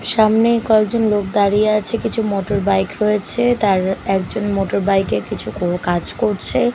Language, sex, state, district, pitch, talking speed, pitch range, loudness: Bengali, female, Bihar, Katihar, 205 Hz, 135 wpm, 195-220 Hz, -17 LUFS